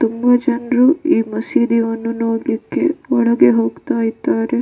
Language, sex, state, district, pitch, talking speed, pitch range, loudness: Kannada, female, Karnataka, Dakshina Kannada, 230 Hz, 115 wpm, 225-255 Hz, -16 LUFS